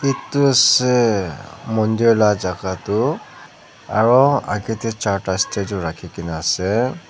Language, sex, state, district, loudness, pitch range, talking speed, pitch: Nagamese, male, Nagaland, Dimapur, -18 LUFS, 95-120 Hz, 100 wpm, 105 Hz